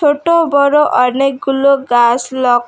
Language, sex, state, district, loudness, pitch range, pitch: Bengali, female, West Bengal, Alipurduar, -12 LUFS, 250-290 Hz, 275 Hz